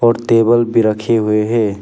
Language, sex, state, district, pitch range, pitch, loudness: Hindi, male, Arunachal Pradesh, Papum Pare, 105-115 Hz, 115 Hz, -14 LUFS